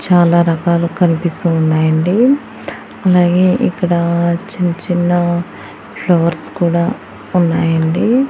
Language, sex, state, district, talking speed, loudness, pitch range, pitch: Telugu, female, Andhra Pradesh, Annamaya, 80 wpm, -14 LUFS, 170-180 Hz, 175 Hz